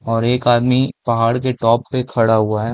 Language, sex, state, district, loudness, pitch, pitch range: Hindi, male, Chhattisgarh, Balrampur, -16 LUFS, 120 Hz, 115-125 Hz